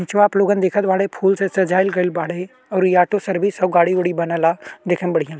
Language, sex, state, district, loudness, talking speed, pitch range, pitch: Bhojpuri, male, Uttar Pradesh, Ghazipur, -18 LUFS, 255 wpm, 175-195 Hz, 185 Hz